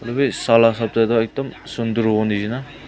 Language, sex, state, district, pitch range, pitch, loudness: Nagamese, male, Nagaland, Kohima, 110-125 Hz, 115 Hz, -19 LUFS